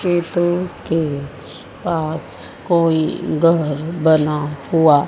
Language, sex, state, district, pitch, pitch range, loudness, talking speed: Hindi, male, Haryana, Jhajjar, 160 Hz, 150-170 Hz, -18 LUFS, 85 wpm